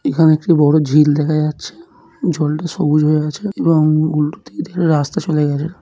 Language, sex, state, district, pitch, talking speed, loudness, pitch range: Bengali, male, West Bengal, Jhargram, 155 Hz, 145 wpm, -15 LUFS, 150-170 Hz